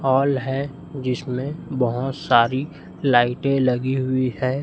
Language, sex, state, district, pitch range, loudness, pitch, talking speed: Hindi, male, Chhattisgarh, Raipur, 125-140 Hz, -22 LUFS, 130 Hz, 115 wpm